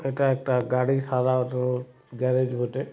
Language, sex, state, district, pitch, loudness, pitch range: Bengali, male, West Bengal, Purulia, 130 Hz, -25 LUFS, 125-130 Hz